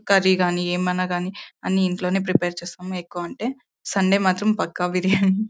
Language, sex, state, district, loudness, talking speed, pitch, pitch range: Telugu, female, Karnataka, Bellary, -22 LUFS, 175 wpm, 185 Hz, 180-195 Hz